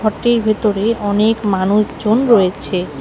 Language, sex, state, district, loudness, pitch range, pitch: Bengali, female, West Bengal, Alipurduar, -15 LUFS, 200-225 Hz, 210 Hz